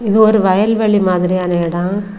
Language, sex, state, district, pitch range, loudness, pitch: Tamil, female, Tamil Nadu, Kanyakumari, 180-215 Hz, -14 LUFS, 200 Hz